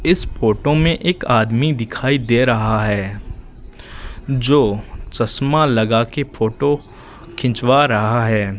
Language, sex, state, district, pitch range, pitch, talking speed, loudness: Hindi, male, Rajasthan, Bikaner, 110-145 Hz, 120 Hz, 120 wpm, -17 LUFS